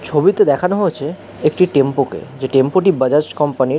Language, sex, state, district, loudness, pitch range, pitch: Bengali, male, West Bengal, Kolkata, -16 LUFS, 135-185 Hz, 150 Hz